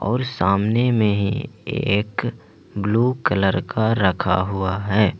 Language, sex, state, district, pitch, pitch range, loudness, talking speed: Hindi, male, Jharkhand, Ranchi, 105 Hz, 100-115 Hz, -20 LUFS, 115 wpm